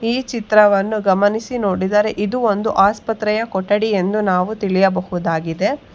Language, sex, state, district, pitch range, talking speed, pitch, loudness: Kannada, female, Karnataka, Bangalore, 190-220 Hz, 110 wpm, 205 Hz, -17 LUFS